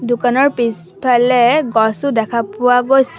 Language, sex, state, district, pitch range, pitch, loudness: Assamese, female, Assam, Sonitpur, 230-255 Hz, 245 Hz, -14 LUFS